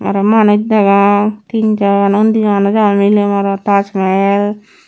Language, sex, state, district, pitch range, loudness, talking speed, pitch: Chakma, female, Tripura, Unakoti, 200-215 Hz, -12 LUFS, 135 wpm, 205 Hz